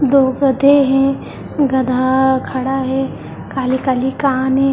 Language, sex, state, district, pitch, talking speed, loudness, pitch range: Hindi, female, Maharashtra, Mumbai Suburban, 265 Hz, 140 wpm, -15 LUFS, 260-275 Hz